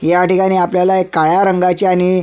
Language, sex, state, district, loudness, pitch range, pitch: Marathi, male, Maharashtra, Sindhudurg, -12 LUFS, 180-190 Hz, 180 Hz